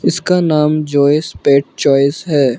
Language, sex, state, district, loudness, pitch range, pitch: Hindi, male, Arunachal Pradesh, Lower Dibang Valley, -13 LUFS, 140-155 Hz, 145 Hz